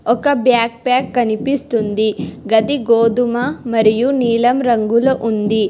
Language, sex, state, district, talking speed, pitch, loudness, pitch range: Telugu, female, Telangana, Hyderabad, 95 wpm, 235 Hz, -15 LUFS, 225-255 Hz